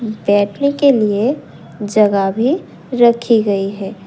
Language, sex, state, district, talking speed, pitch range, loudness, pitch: Hindi, female, Tripura, West Tripura, 120 wpm, 200-245 Hz, -15 LUFS, 215 Hz